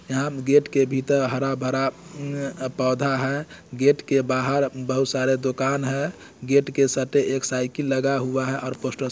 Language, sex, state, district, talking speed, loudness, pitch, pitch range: Hindi, male, Bihar, Muzaffarpur, 165 wpm, -23 LUFS, 135 Hz, 130-140 Hz